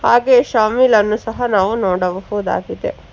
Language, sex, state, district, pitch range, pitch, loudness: Kannada, female, Karnataka, Bangalore, 200-245 Hz, 215 Hz, -16 LUFS